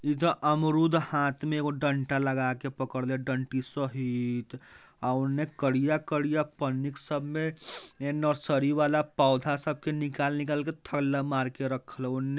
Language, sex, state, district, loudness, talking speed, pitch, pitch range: Bajjika, male, Bihar, Vaishali, -29 LUFS, 160 wpm, 140 Hz, 130-150 Hz